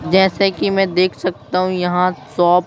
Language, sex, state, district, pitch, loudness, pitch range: Hindi, male, Madhya Pradesh, Bhopal, 185 Hz, -17 LUFS, 180-190 Hz